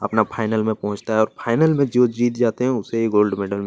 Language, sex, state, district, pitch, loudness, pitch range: Hindi, male, Chhattisgarh, Kabirdham, 110 Hz, -20 LUFS, 105-120 Hz